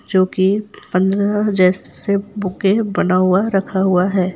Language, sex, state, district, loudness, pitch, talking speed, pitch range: Hindi, female, Jharkhand, Ranchi, -16 LUFS, 190 Hz, 150 wpm, 185-200 Hz